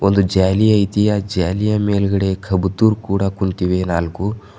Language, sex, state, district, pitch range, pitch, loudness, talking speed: Kannada, male, Karnataka, Bidar, 95-105 Hz, 100 Hz, -17 LUFS, 130 wpm